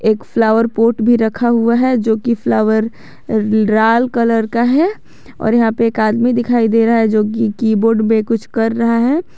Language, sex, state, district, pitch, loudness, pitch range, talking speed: Hindi, female, Jharkhand, Garhwa, 230 Hz, -14 LUFS, 220-235 Hz, 200 wpm